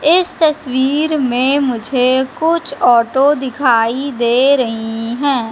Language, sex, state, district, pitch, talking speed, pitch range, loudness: Hindi, female, Madhya Pradesh, Katni, 265 Hz, 110 wpm, 240-285 Hz, -14 LUFS